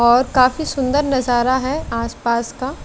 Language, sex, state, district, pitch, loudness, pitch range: Hindi, female, Chandigarh, Chandigarh, 255 Hz, -18 LUFS, 240-270 Hz